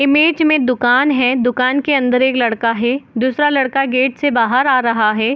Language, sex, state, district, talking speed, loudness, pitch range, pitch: Hindi, female, Bihar, Gopalganj, 215 wpm, -14 LUFS, 245-275 Hz, 255 Hz